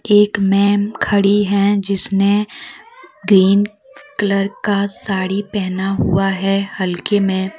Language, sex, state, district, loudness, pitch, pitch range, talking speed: Hindi, female, Jharkhand, Deoghar, -15 LUFS, 200 Hz, 195-205 Hz, 110 wpm